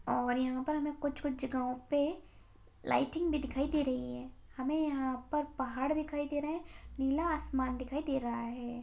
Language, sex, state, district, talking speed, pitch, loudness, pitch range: Hindi, female, Bihar, Begusarai, 185 wpm, 275 Hz, -35 LUFS, 255-300 Hz